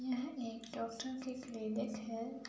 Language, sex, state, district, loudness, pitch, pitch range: Hindi, female, Uttar Pradesh, Budaun, -42 LUFS, 235 Hz, 230-255 Hz